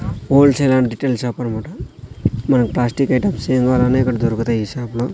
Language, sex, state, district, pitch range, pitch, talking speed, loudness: Telugu, male, Andhra Pradesh, Sri Satya Sai, 115-130 Hz, 125 Hz, 185 wpm, -17 LUFS